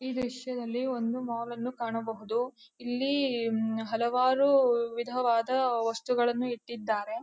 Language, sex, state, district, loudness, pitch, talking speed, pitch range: Kannada, female, Karnataka, Dharwad, -30 LUFS, 240 Hz, 110 wpm, 230-255 Hz